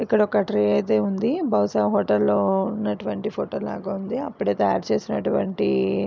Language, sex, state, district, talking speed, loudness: Telugu, female, Andhra Pradesh, Visakhapatnam, 170 wpm, -23 LUFS